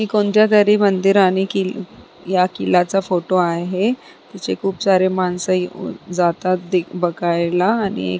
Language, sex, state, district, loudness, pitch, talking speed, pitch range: Marathi, female, Maharashtra, Sindhudurg, -18 LUFS, 185 Hz, 115 wpm, 180-195 Hz